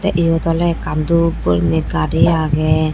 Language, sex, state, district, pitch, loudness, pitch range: Chakma, female, Tripura, Dhalai, 160 Hz, -16 LUFS, 155-170 Hz